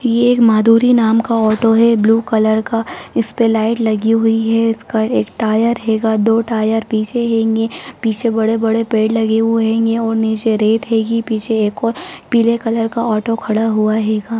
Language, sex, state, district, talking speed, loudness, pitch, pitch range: Hindi, female, Bihar, Saran, 180 wpm, -15 LUFS, 225 Hz, 220-230 Hz